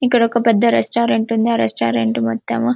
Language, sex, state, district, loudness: Telugu, female, Telangana, Karimnagar, -16 LUFS